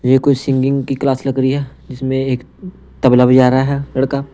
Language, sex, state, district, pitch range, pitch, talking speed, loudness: Hindi, male, Punjab, Pathankot, 130-140 Hz, 135 Hz, 205 wpm, -15 LUFS